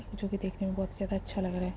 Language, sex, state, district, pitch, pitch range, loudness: Hindi, female, Bihar, Darbhanga, 195 Hz, 190-195 Hz, -34 LUFS